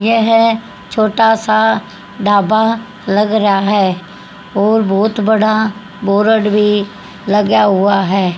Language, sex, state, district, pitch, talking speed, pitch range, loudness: Hindi, female, Haryana, Charkhi Dadri, 210 Hz, 105 wpm, 200-220 Hz, -13 LUFS